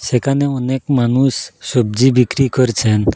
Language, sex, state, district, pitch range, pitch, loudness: Bengali, male, Assam, Hailakandi, 120-135 Hz, 125 Hz, -15 LUFS